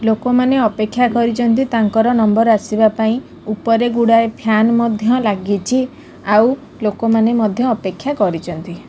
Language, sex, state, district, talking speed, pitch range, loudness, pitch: Odia, female, Odisha, Khordha, 115 wpm, 215-240 Hz, -15 LUFS, 225 Hz